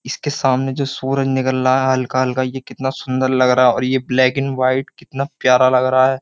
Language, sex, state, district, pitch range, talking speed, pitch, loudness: Hindi, male, Uttar Pradesh, Jyotiba Phule Nagar, 130-135 Hz, 240 wpm, 130 Hz, -17 LUFS